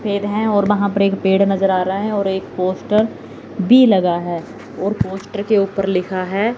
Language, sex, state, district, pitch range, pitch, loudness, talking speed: Hindi, female, Chandigarh, Chandigarh, 185-205 Hz, 195 Hz, -17 LUFS, 210 wpm